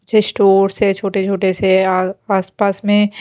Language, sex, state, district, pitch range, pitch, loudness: Hindi, female, Haryana, Jhajjar, 190-205 Hz, 195 Hz, -15 LUFS